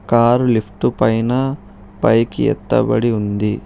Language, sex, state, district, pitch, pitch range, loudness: Telugu, male, Telangana, Hyderabad, 115 Hz, 105-120 Hz, -16 LUFS